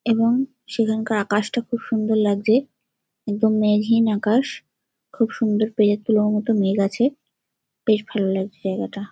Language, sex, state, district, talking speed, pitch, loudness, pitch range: Bengali, female, West Bengal, Kolkata, 130 wpm, 220 Hz, -21 LUFS, 210-230 Hz